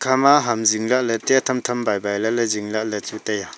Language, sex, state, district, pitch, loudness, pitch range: Wancho, male, Arunachal Pradesh, Longding, 115 Hz, -20 LUFS, 105-130 Hz